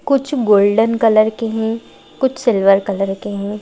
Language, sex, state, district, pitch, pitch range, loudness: Hindi, female, Madhya Pradesh, Bhopal, 220 Hz, 200-230 Hz, -15 LUFS